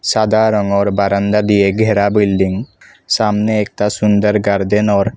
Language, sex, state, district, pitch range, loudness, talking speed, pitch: Bengali, male, Assam, Kamrup Metropolitan, 100-105 Hz, -14 LUFS, 140 wpm, 105 Hz